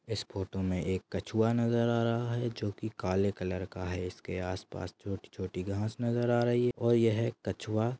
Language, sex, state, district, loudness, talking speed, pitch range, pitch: Hindi, male, Chhattisgarh, Raigarh, -32 LUFS, 195 wpm, 95-115 Hz, 105 Hz